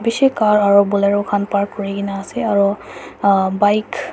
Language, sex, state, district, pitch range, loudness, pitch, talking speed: Nagamese, female, Nagaland, Dimapur, 200-210 Hz, -16 LUFS, 200 Hz, 175 wpm